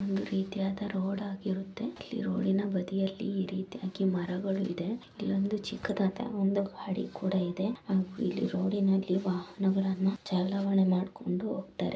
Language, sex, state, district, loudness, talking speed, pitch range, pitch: Kannada, female, Karnataka, Mysore, -32 LUFS, 115 wpm, 190-200 Hz, 195 Hz